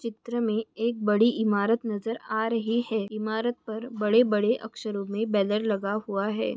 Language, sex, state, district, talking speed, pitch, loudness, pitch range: Hindi, female, Maharashtra, Aurangabad, 175 wpm, 220 Hz, -27 LUFS, 210-230 Hz